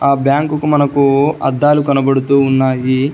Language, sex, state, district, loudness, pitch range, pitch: Telugu, male, Telangana, Hyderabad, -13 LUFS, 135-145 Hz, 140 Hz